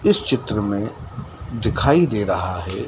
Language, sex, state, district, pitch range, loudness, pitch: Hindi, male, Madhya Pradesh, Dhar, 105-130 Hz, -20 LUFS, 110 Hz